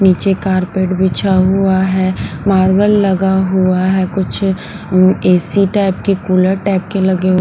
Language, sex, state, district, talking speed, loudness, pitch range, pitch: Hindi, female, Punjab, Pathankot, 140 wpm, -13 LUFS, 185-195 Hz, 190 Hz